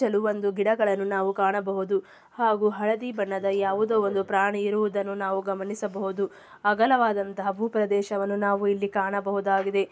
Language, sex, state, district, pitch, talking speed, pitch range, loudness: Kannada, female, Karnataka, Chamarajanagar, 200 Hz, 105 wpm, 195-210 Hz, -26 LUFS